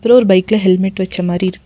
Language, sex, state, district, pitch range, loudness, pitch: Tamil, female, Tamil Nadu, Nilgiris, 185-205 Hz, -13 LUFS, 190 Hz